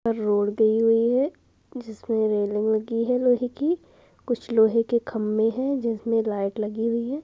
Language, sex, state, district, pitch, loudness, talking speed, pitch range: Hindi, female, Uttar Pradesh, Budaun, 230 Hz, -24 LUFS, 165 wpm, 220-245 Hz